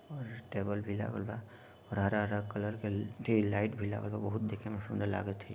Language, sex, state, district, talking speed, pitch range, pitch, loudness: Bhojpuri, male, Bihar, Sitamarhi, 215 wpm, 100-110 Hz, 105 Hz, -36 LUFS